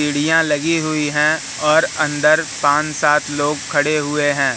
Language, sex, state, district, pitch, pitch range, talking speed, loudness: Hindi, male, Madhya Pradesh, Katni, 150 Hz, 145-155 Hz, 160 wpm, -16 LUFS